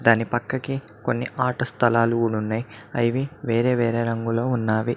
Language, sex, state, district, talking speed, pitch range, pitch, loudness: Telugu, male, Telangana, Mahabubabad, 135 wpm, 115-125 Hz, 115 Hz, -23 LUFS